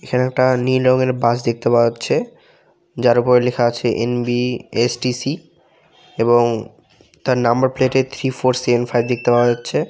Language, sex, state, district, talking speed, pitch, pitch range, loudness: Bengali, male, West Bengal, Jalpaiguri, 145 wpm, 125 Hz, 120-130 Hz, -17 LUFS